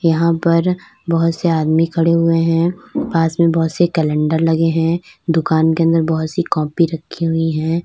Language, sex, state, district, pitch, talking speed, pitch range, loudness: Hindi, female, Uttar Pradesh, Lalitpur, 165 Hz, 190 wpm, 160-170 Hz, -16 LUFS